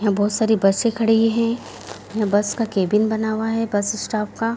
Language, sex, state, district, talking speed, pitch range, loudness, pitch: Hindi, female, Bihar, Bhagalpur, 225 wpm, 205-225 Hz, -20 LUFS, 220 Hz